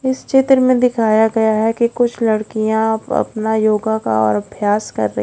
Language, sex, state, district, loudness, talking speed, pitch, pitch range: Hindi, female, Odisha, Khordha, -16 LUFS, 185 wpm, 220 Hz, 215-235 Hz